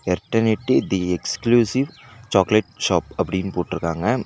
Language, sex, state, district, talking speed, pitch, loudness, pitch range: Tamil, male, Tamil Nadu, Nilgiris, 100 wpm, 105 Hz, -21 LUFS, 90-120 Hz